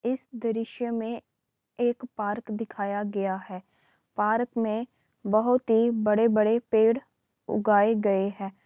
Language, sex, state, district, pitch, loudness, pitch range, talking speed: Hindi, female, Bihar, Saharsa, 220 Hz, -26 LUFS, 205-235 Hz, 110 wpm